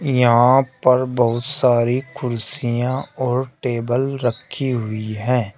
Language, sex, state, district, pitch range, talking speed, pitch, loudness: Hindi, male, Uttar Pradesh, Shamli, 120-130 Hz, 105 wpm, 125 Hz, -19 LUFS